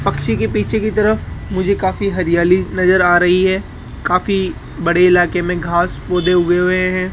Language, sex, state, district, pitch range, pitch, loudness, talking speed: Hindi, male, Rajasthan, Jaipur, 175-185 Hz, 180 Hz, -15 LUFS, 175 wpm